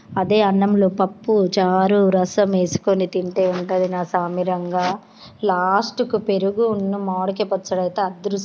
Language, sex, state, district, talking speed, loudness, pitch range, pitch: Telugu, female, Andhra Pradesh, Srikakulam, 105 wpm, -20 LUFS, 185-200 Hz, 190 Hz